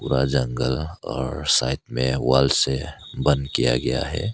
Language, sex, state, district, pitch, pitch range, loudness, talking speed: Hindi, male, Arunachal Pradesh, Papum Pare, 65 Hz, 65-75 Hz, -22 LUFS, 140 wpm